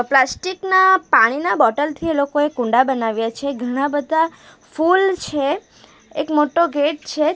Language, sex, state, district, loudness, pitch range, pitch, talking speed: Gujarati, female, Gujarat, Valsad, -18 LUFS, 270-330 Hz, 295 Hz, 145 wpm